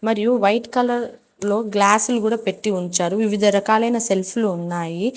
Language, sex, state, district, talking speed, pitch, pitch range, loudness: Telugu, female, Telangana, Mahabubabad, 140 wpm, 210 Hz, 195-230 Hz, -19 LUFS